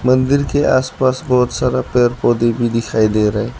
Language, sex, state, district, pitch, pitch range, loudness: Hindi, male, Arunachal Pradesh, Lower Dibang Valley, 125 Hz, 115-130 Hz, -15 LUFS